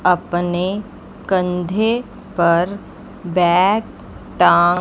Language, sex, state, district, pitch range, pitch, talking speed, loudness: Hindi, female, Chandigarh, Chandigarh, 175-200 Hz, 180 Hz, 60 wpm, -17 LUFS